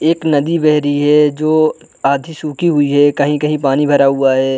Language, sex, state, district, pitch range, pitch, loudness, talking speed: Hindi, male, Chhattisgarh, Bilaspur, 140-155 Hz, 145 Hz, -13 LUFS, 210 wpm